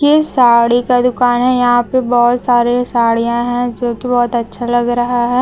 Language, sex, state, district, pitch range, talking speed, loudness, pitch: Hindi, female, Chhattisgarh, Raipur, 240-245 Hz, 190 wpm, -13 LUFS, 245 Hz